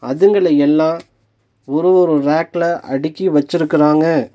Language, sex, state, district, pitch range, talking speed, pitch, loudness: Tamil, male, Tamil Nadu, Nilgiris, 145-170 Hz, 95 wpm, 155 Hz, -14 LUFS